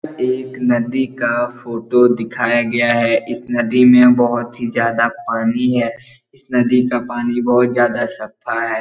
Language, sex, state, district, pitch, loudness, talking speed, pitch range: Hindi, male, Bihar, Jahanabad, 120 Hz, -16 LUFS, 155 wpm, 120-125 Hz